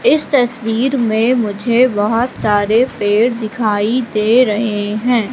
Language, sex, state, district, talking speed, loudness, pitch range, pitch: Hindi, female, Madhya Pradesh, Katni, 125 wpm, -15 LUFS, 210-250 Hz, 230 Hz